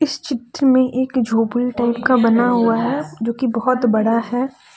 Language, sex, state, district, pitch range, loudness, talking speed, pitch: Hindi, female, Jharkhand, Deoghar, 230-255 Hz, -18 LUFS, 190 wpm, 245 Hz